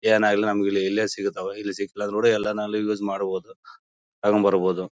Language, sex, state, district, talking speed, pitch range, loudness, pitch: Kannada, male, Karnataka, Bellary, 145 wpm, 100-105 Hz, -24 LUFS, 100 Hz